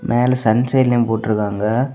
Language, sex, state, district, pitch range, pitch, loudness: Tamil, male, Tamil Nadu, Kanyakumari, 110-125 Hz, 120 Hz, -17 LUFS